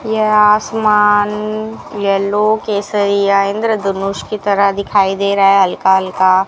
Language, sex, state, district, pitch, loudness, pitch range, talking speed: Hindi, female, Rajasthan, Bikaner, 200 Hz, -14 LUFS, 195-210 Hz, 130 wpm